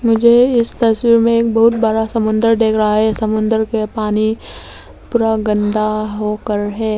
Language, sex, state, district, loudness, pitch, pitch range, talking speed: Hindi, female, Arunachal Pradesh, Lower Dibang Valley, -15 LUFS, 220 Hz, 215-230 Hz, 155 wpm